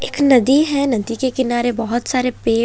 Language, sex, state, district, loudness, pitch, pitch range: Hindi, female, Delhi, New Delhi, -17 LUFS, 250 Hz, 240-275 Hz